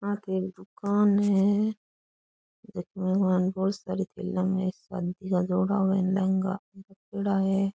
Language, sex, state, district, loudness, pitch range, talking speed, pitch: Rajasthani, female, Rajasthan, Churu, -27 LUFS, 185-200 Hz, 125 wpm, 190 Hz